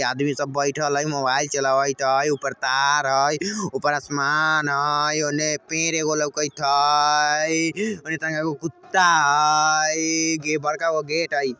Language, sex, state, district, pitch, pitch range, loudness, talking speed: Maithili, male, Bihar, Vaishali, 150 Hz, 145-155 Hz, -21 LUFS, 125 wpm